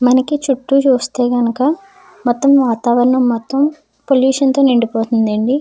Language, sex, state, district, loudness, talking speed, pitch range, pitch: Telugu, female, Andhra Pradesh, Chittoor, -14 LUFS, 105 wpm, 240-275 Hz, 260 Hz